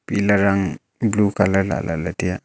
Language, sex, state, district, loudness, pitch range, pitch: Wancho, male, Arunachal Pradesh, Longding, -20 LUFS, 90-100 Hz, 95 Hz